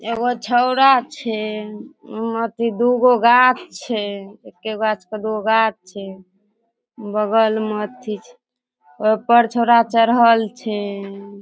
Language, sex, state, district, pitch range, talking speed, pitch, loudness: Maithili, female, Bihar, Darbhanga, 210-235 Hz, 130 wpm, 220 Hz, -18 LUFS